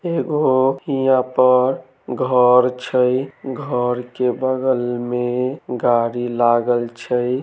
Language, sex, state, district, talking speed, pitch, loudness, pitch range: Maithili, male, Bihar, Samastipur, 95 wpm, 125 Hz, -18 LUFS, 125-130 Hz